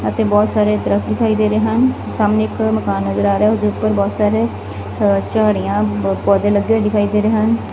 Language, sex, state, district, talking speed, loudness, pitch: Punjabi, female, Punjab, Fazilka, 210 wpm, -16 LUFS, 210 Hz